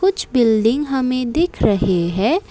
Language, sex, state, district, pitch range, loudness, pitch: Hindi, female, Assam, Kamrup Metropolitan, 215-310 Hz, -17 LUFS, 250 Hz